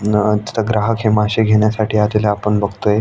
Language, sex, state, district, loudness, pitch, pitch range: Marathi, male, Maharashtra, Aurangabad, -16 LUFS, 105 Hz, 105-110 Hz